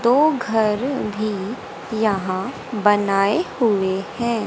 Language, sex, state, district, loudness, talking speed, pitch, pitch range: Hindi, female, Haryana, Jhajjar, -20 LUFS, 95 wpm, 215 Hz, 200-235 Hz